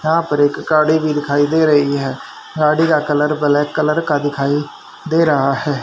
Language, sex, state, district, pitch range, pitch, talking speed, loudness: Hindi, male, Haryana, Rohtak, 145-155 Hz, 150 Hz, 195 wpm, -16 LUFS